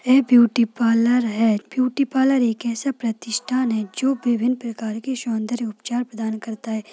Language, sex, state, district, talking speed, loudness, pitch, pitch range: Hindi, female, Bihar, Kishanganj, 165 wpm, -21 LUFS, 235 Hz, 225-255 Hz